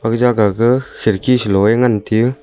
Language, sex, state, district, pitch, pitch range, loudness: Wancho, male, Arunachal Pradesh, Longding, 115 Hz, 105-125 Hz, -14 LUFS